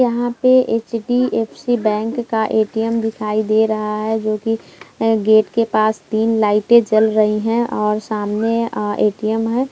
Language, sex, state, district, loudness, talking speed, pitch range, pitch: Hindi, female, Bihar, Kishanganj, -17 LUFS, 155 wpm, 215-230 Hz, 220 Hz